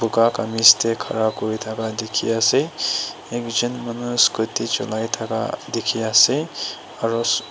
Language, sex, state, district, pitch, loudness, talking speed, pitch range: Nagamese, female, Nagaland, Dimapur, 115 Hz, -20 LUFS, 120 wpm, 110-120 Hz